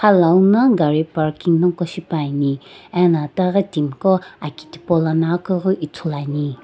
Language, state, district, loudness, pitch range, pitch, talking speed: Sumi, Nagaland, Dimapur, -18 LUFS, 150-185 Hz, 165 Hz, 145 wpm